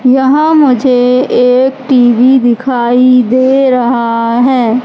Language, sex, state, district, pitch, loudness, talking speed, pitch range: Hindi, female, Madhya Pradesh, Katni, 255 Hz, -9 LUFS, 100 wpm, 245-265 Hz